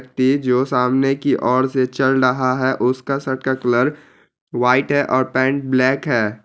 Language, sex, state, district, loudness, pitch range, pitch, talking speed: Hindi, male, Bihar, Araria, -18 LUFS, 125-135 Hz, 130 Hz, 175 wpm